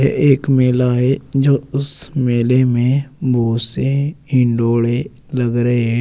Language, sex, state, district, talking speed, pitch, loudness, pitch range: Hindi, male, Uttar Pradesh, Saharanpur, 130 wpm, 130 Hz, -16 LUFS, 120-140 Hz